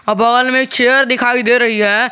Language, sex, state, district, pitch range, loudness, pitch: Hindi, male, Jharkhand, Garhwa, 230-255 Hz, -12 LUFS, 245 Hz